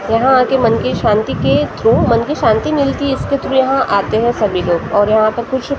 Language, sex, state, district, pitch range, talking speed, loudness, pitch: Hindi, female, Maharashtra, Gondia, 215-265 Hz, 225 wpm, -14 LUFS, 235 Hz